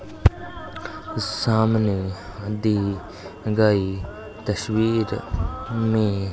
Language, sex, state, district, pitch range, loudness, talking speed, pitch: Hindi, male, Rajasthan, Bikaner, 95-110 Hz, -23 LUFS, 55 wpm, 105 Hz